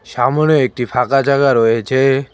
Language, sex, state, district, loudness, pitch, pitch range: Bengali, male, West Bengal, Cooch Behar, -14 LUFS, 135 Hz, 120-140 Hz